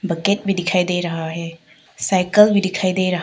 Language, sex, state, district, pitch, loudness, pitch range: Hindi, female, Arunachal Pradesh, Papum Pare, 180 Hz, -18 LUFS, 170-195 Hz